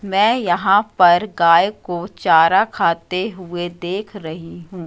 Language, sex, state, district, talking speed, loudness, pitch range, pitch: Hindi, female, Madhya Pradesh, Katni, 135 wpm, -17 LUFS, 170-200 Hz, 180 Hz